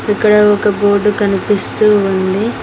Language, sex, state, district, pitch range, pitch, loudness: Telugu, female, Telangana, Mahabubabad, 200-210 Hz, 205 Hz, -12 LUFS